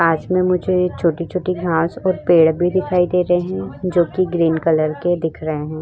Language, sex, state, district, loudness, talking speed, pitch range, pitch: Hindi, female, Uttar Pradesh, Budaun, -18 LUFS, 215 wpm, 160-180 Hz, 175 Hz